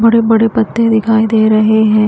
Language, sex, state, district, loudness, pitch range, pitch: Hindi, female, Haryana, Jhajjar, -11 LUFS, 220-225 Hz, 220 Hz